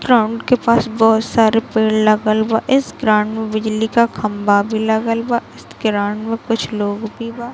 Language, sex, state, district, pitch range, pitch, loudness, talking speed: Hindi, female, Chhattisgarh, Bilaspur, 215-230 Hz, 220 Hz, -16 LUFS, 190 wpm